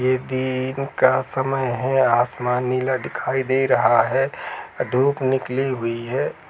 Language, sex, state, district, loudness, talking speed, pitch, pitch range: Hindi, male, Uttar Pradesh, Jalaun, -21 LUFS, 140 wpm, 130 Hz, 125-130 Hz